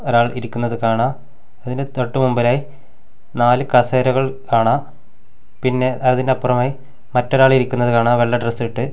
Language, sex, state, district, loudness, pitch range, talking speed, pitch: Malayalam, male, Kerala, Kasaragod, -17 LUFS, 120-130 Hz, 115 wpm, 125 Hz